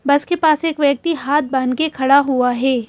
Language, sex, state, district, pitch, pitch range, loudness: Hindi, female, Madhya Pradesh, Bhopal, 285 Hz, 260-310 Hz, -16 LUFS